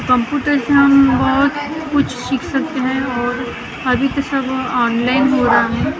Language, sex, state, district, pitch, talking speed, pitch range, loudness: Hindi, female, Maharashtra, Gondia, 265 Hz, 160 wpm, 255-280 Hz, -16 LUFS